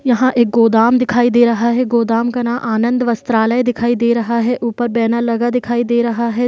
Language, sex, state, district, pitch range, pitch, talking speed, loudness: Hindi, female, Bihar, East Champaran, 235-245 Hz, 235 Hz, 210 wpm, -15 LUFS